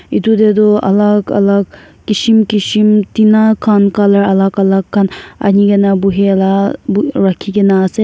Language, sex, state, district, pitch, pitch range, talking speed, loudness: Nagamese, female, Nagaland, Kohima, 200 Hz, 195-210 Hz, 125 wpm, -11 LUFS